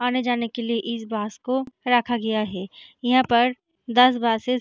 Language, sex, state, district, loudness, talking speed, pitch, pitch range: Hindi, female, Bihar, Darbhanga, -22 LUFS, 195 wpm, 240 Hz, 230-250 Hz